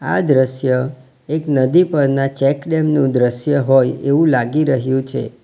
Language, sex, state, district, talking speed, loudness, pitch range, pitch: Gujarati, male, Gujarat, Valsad, 145 wpm, -16 LUFS, 130-150 Hz, 135 Hz